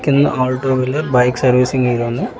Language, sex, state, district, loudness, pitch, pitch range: Telugu, male, Telangana, Hyderabad, -15 LUFS, 130 Hz, 125-130 Hz